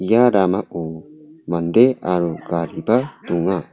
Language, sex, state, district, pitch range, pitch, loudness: Garo, male, Meghalaya, South Garo Hills, 85-120 Hz, 95 Hz, -19 LUFS